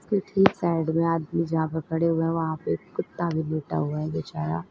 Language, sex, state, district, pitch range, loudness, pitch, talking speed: Hindi, female, Uttar Pradesh, Lalitpur, 155-170 Hz, -26 LUFS, 160 Hz, 215 wpm